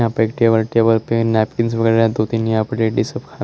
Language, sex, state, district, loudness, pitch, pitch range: Hindi, male, Chandigarh, Chandigarh, -17 LUFS, 115 Hz, 110-115 Hz